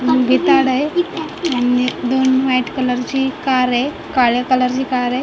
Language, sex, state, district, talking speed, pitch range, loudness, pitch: Marathi, female, Maharashtra, Mumbai Suburban, 170 wpm, 250-270 Hz, -16 LUFS, 260 Hz